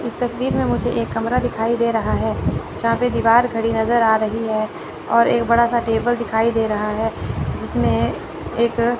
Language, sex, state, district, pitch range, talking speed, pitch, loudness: Hindi, female, Chandigarh, Chandigarh, 225-235 Hz, 195 wpm, 230 Hz, -19 LUFS